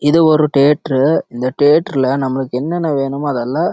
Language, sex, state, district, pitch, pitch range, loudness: Tamil, male, Karnataka, Chamarajanagar, 140 Hz, 130-150 Hz, -15 LUFS